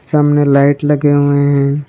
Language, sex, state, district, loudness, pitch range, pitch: Hindi, male, Jharkhand, Ranchi, -12 LUFS, 140-145 Hz, 145 Hz